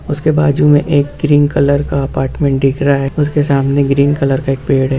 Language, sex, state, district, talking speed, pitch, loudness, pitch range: Hindi, male, Bihar, Jamui, 230 wpm, 140 Hz, -13 LUFS, 135-145 Hz